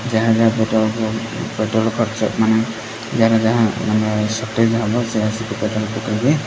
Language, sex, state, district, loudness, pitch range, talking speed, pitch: Odia, male, Odisha, Khordha, -18 LUFS, 110-115 Hz, 150 wpm, 110 Hz